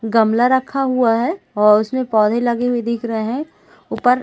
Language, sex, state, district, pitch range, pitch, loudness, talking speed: Hindi, female, Chhattisgarh, Raigarh, 225-255 Hz, 240 Hz, -17 LUFS, 185 wpm